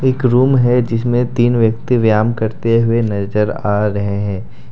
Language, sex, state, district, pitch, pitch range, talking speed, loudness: Hindi, male, Jharkhand, Deoghar, 115 Hz, 105-120 Hz, 165 wpm, -15 LUFS